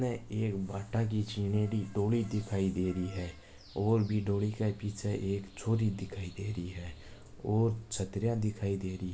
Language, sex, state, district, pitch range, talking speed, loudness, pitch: Marwari, male, Rajasthan, Nagaur, 95-110 Hz, 170 wpm, -34 LUFS, 100 Hz